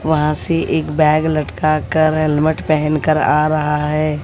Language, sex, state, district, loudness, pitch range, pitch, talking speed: Hindi, female, Bihar, West Champaran, -16 LUFS, 150-155 Hz, 155 Hz, 170 wpm